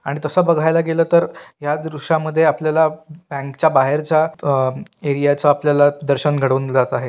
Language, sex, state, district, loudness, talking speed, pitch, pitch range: Marathi, male, Maharashtra, Pune, -17 LUFS, 160 wpm, 150 Hz, 140-160 Hz